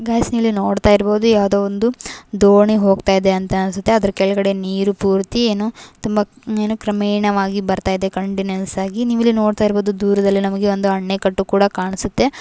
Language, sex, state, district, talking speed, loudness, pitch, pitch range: Kannada, female, Karnataka, Gulbarga, 150 wpm, -17 LUFS, 200 Hz, 195-215 Hz